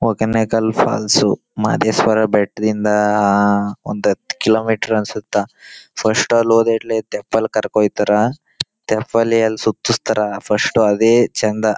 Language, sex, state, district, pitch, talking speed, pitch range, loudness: Kannada, male, Karnataka, Chamarajanagar, 110 Hz, 105 wpm, 105-115 Hz, -16 LUFS